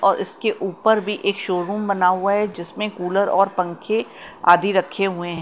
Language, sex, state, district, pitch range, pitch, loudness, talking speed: Hindi, female, Bihar, Katihar, 180-210 Hz, 195 Hz, -20 LUFS, 190 wpm